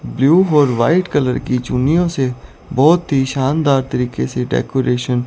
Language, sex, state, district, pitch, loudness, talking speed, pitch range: Hindi, female, Chandigarh, Chandigarh, 130 Hz, -16 LUFS, 160 wpm, 125-150 Hz